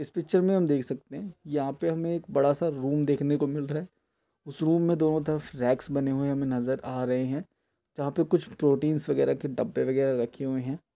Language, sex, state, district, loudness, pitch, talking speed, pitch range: Hindi, male, Uttar Pradesh, Etah, -28 LUFS, 145 Hz, 235 wpm, 135-165 Hz